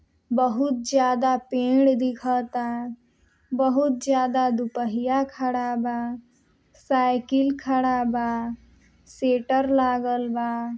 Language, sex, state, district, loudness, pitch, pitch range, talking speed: Bhojpuri, male, Uttar Pradesh, Deoria, -24 LUFS, 250 Hz, 240-265 Hz, 90 wpm